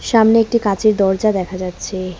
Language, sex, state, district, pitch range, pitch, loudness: Bengali, female, West Bengal, Cooch Behar, 185-220 Hz, 200 Hz, -16 LUFS